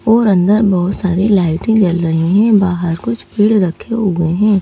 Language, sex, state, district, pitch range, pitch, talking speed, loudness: Hindi, female, Madhya Pradesh, Bhopal, 175-215 Hz, 195 Hz, 180 wpm, -13 LUFS